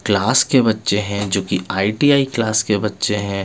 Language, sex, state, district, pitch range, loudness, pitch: Hindi, male, Bihar, Patna, 100-115 Hz, -17 LUFS, 105 Hz